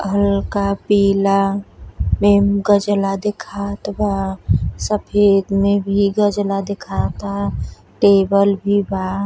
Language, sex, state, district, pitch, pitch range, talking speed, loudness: Bhojpuri, female, Uttar Pradesh, Deoria, 200 Hz, 195-200 Hz, 90 wpm, -17 LUFS